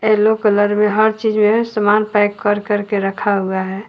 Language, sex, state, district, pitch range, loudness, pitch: Hindi, female, Uttar Pradesh, Lucknow, 205-215 Hz, -16 LUFS, 210 Hz